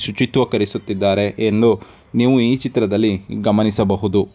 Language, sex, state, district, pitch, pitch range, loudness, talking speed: Kannada, male, Karnataka, Dharwad, 105 Hz, 100-120 Hz, -17 LUFS, 95 wpm